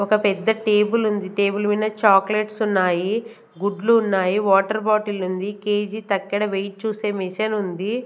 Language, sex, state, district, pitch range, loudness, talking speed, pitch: Telugu, female, Andhra Pradesh, Manyam, 195-215 Hz, -21 LUFS, 125 wpm, 210 Hz